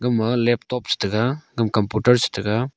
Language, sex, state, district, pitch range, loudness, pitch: Wancho, male, Arunachal Pradesh, Longding, 110-125 Hz, -21 LUFS, 120 Hz